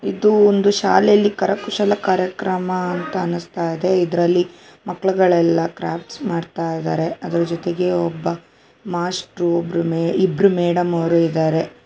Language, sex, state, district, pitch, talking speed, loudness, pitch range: Kannada, female, Karnataka, Chamarajanagar, 180 Hz, 105 wpm, -19 LUFS, 170-190 Hz